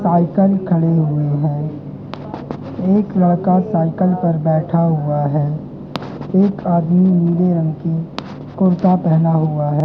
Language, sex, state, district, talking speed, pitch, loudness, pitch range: Hindi, male, Madhya Pradesh, Katni, 120 wpm, 170 Hz, -16 LUFS, 155-185 Hz